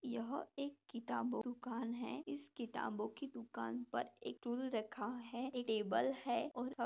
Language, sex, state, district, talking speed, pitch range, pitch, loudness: Hindi, female, Maharashtra, Nagpur, 140 wpm, 230-265 Hz, 245 Hz, -43 LUFS